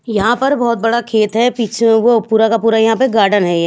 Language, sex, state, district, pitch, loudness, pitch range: Hindi, female, Bihar, Patna, 225 Hz, -13 LUFS, 220-235 Hz